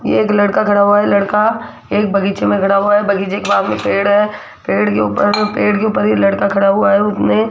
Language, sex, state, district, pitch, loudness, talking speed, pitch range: Hindi, female, Rajasthan, Jaipur, 200 Hz, -14 LUFS, 255 wpm, 195-210 Hz